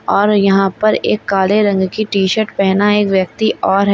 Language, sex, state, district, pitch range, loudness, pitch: Hindi, female, Uttar Pradesh, Lalitpur, 195-210 Hz, -14 LUFS, 200 Hz